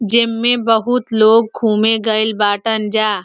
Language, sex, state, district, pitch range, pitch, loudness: Bhojpuri, female, Uttar Pradesh, Ghazipur, 215-230 Hz, 220 Hz, -14 LUFS